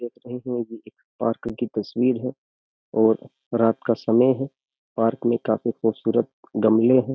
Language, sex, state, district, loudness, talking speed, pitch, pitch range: Hindi, male, Uttar Pradesh, Jyotiba Phule Nagar, -23 LUFS, 170 wpm, 115 Hz, 115-125 Hz